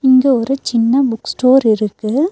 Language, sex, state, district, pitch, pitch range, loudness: Tamil, female, Tamil Nadu, Nilgiris, 255 Hz, 230-270 Hz, -14 LUFS